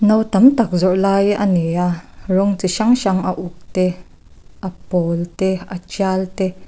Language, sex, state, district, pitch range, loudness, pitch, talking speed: Mizo, female, Mizoram, Aizawl, 180-200 Hz, -17 LUFS, 190 Hz, 170 wpm